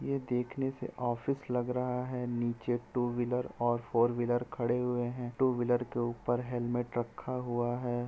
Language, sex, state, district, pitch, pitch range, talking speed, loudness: Hindi, male, Uttar Pradesh, Etah, 120 Hz, 120-125 Hz, 155 wpm, -33 LUFS